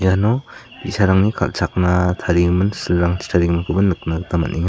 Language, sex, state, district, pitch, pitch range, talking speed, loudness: Garo, male, Meghalaya, South Garo Hills, 90 Hz, 85-95 Hz, 115 wpm, -18 LUFS